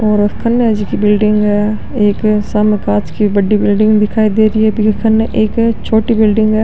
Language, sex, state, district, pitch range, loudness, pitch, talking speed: Rajasthani, male, Rajasthan, Nagaur, 210-220 Hz, -12 LUFS, 215 Hz, 215 wpm